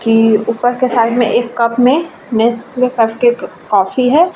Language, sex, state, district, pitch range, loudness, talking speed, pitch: Hindi, female, Bihar, Vaishali, 225-255 Hz, -13 LUFS, 195 wpm, 240 Hz